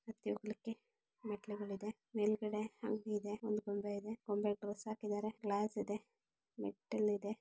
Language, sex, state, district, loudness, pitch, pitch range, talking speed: Kannada, female, Karnataka, Shimoga, -42 LUFS, 210 Hz, 205-215 Hz, 120 wpm